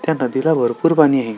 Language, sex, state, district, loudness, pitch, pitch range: Marathi, male, Maharashtra, Solapur, -16 LUFS, 135 Hz, 125-160 Hz